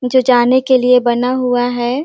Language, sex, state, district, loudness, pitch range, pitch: Hindi, female, Chhattisgarh, Sarguja, -13 LUFS, 245-255 Hz, 250 Hz